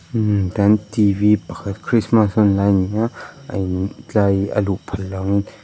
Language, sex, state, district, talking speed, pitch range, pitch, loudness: Mizo, male, Mizoram, Aizawl, 180 wpm, 95-105 Hz, 100 Hz, -19 LUFS